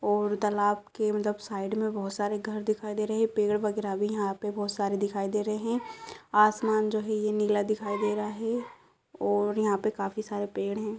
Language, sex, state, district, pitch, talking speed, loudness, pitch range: Hindi, female, Uttar Pradesh, Ghazipur, 210 Hz, 220 wpm, -29 LUFS, 205-215 Hz